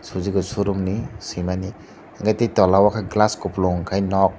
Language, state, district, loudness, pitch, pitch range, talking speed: Kokborok, Tripura, Dhalai, -21 LUFS, 100 Hz, 95-105 Hz, 175 wpm